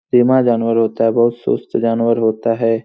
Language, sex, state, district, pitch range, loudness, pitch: Hindi, male, Bihar, Supaul, 115-120 Hz, -15 LUFS, 115 Hz